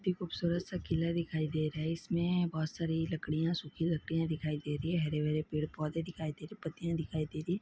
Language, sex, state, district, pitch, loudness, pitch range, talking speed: Hindi, female, Chhattisgarh, Sukma, 160 Hz, -35 LUFS, 155-170 Hz, 230 wpm